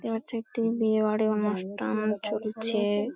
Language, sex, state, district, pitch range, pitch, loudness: Bengali, female, West Bengal, Paschim Medinipur, 210-225 Hz, 215 Hz, -28 LUFS